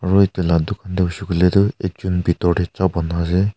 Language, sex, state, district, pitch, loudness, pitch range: Nagamese, male, Nagaland, Kohima, 90 Hz, -19 LUFS, 85-95 Hz